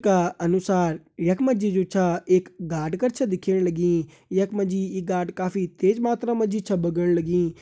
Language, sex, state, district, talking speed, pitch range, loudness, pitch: Hindi, male, Uttarakhand, Uttarkashi, 205 wpm, 175-195 Hz, -24 LUFS, 185 Hz